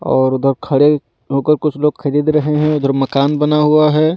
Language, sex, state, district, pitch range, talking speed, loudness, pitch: Hindi, male, Delhi, New Delhi, 135-150 Hz, 200 wpm, -14 LUFS, 150 Hz